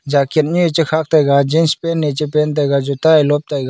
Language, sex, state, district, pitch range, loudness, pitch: Wancho, male, Arunachal Pradesh, Longding, 140-160 Hz, -15 LUFS, 150 Hz